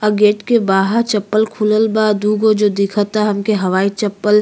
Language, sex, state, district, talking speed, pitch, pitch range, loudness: Bhojpuri, female, Uttar Pradesh, Ghazipur, 190 wpm, 210 Hz, 205-215 Hz, -15 LUFS